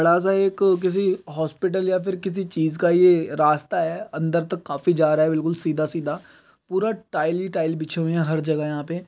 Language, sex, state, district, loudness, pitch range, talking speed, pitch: Hindi, male, Uttar Pradesh, Budaun, -22 LUFS, 160-185 Hz, 210 wpm, 165 Hz